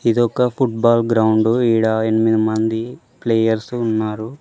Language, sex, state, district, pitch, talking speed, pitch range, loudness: Telugu, male, Telangana, Mahabubabad, 115 Hz, 135 wpm, 110-120 Hz, -17 LUFS